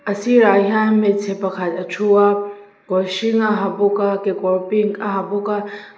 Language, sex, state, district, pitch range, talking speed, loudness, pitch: Mizo, female, Mizoram, Aizawl, 195-210 Hz, 180 wpm, -17 LUFS, 205 Hz